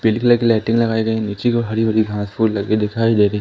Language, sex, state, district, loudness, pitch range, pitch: Hindi, male, Madhya Pradesh, Umaria, -17 LUFS, 105-115 Hz, 110 Hz